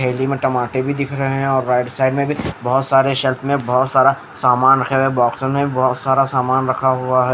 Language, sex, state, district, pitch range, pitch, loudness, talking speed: Hindi, female, Odisha, Khordha, 130-135 Hz, 130 Hz, -17 LUFS, 245 wpm